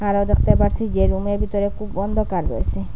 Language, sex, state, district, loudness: Bengali, female, Assam, Hailakandi, -21 LUFS